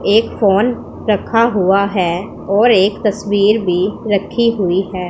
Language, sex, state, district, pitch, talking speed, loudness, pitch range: Hindi, female, Punjab, Pathankot, 205 Hz, 140 wpm, -15 LUFS, 190-220 Hz